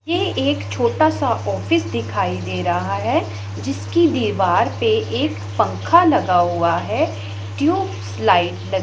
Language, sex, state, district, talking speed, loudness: Hindi, female, Punjab, Pathankot, 130 wpm, -19 LUFS